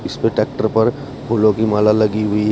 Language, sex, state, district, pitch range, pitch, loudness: Hindi, male, Uttar Pradesh, Shamli, 105-110 Hz, 110 Hz, -16 LUFS